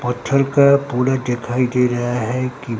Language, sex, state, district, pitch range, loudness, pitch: Hindi, male, Bihar, Katihar, 120-135 Hz, -18 LUFS, 125 Hz